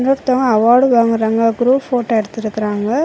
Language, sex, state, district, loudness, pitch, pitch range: Tamil, female, Karnataka, Bangalore, -14 LUFS, 235 Hz, 220-255 Hz